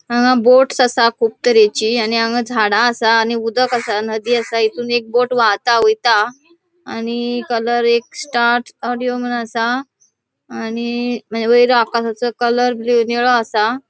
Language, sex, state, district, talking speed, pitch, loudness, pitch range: Konkani, female, Goa, North and South Goa, 140 wpm, 235 Hz, -15 LUFS, 230-245 Hz